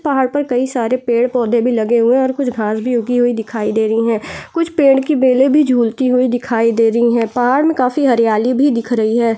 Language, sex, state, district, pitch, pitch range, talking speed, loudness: Hindi, female, Chhattisgarh, Jashpur, 245 Hz, 230-265 Hz, 250 wpm, -14 LUFS